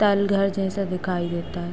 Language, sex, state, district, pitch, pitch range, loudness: Hindi, female, Uttar Pradesh, Hamirpur, 190 Hz, 175-200 Hz, -24 LUFS